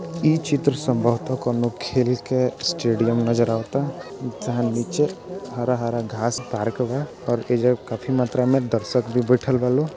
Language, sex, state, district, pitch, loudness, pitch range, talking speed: Bhojpuri, male, Bihar, Gopalganj, 125 Hz, -22 LUFS, 120-135 Hz, 155 wpm